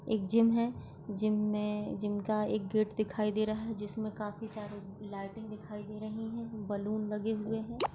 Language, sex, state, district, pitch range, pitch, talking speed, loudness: Hindi, female, Maharashtra, Solapur, 210-220 Hz, 215 Hz, 190 wpm, -35 LUFS